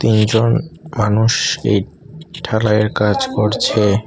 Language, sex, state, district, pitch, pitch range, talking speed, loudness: Bengali, male, Tripura, Unakoti, 110 Hz, 105-135 Hz, 90 wpm, -16 LUFS